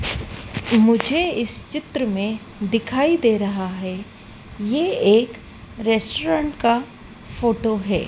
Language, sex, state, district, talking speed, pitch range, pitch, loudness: Hindi, female, Madhya Pradesh, Dhar, 105 wpm, 210-260 Hz, 230 Hz, -20 LUFS